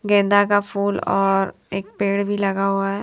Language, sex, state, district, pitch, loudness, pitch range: Hindi, female, Haryana, Charkhi Dadri, 200 Hz, -20 LUFS, 195-205 Hz